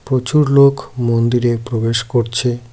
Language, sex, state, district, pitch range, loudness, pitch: Bengali, male, West Bengal, Cooch Behar, 115-130 Hz, -15 LUFS, 120 Hz